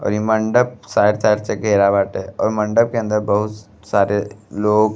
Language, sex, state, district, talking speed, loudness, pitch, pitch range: Bhojpuri, male, Uttar Pradesh, Gorakhpur, 195 wpm, -18 LUFS, 105 Hz, 100-110 Hz